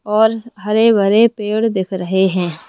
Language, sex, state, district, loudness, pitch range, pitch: Hindi, male, Rajasthan, Jaipur, -15 LUFS, 190-225 Hz, 210 Hz